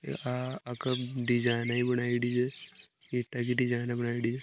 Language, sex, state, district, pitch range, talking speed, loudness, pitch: Marwari, male, Rajasthan, Nagaur, 120-125 Hz, 95 wpm, -31 LUFS, 125 Hz